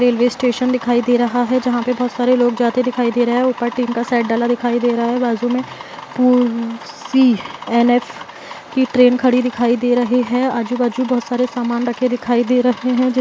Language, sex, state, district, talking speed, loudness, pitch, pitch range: Hindi, female, Bihar, Kishanganj, 210 wpm, -16 LUFS, 245 Hz, 240-250 Hz